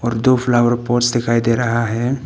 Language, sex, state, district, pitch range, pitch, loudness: Hindi, male, Arunachal Pradesh, Papum Pare, 115-120 Hz, 120 Hz, -16 LUFS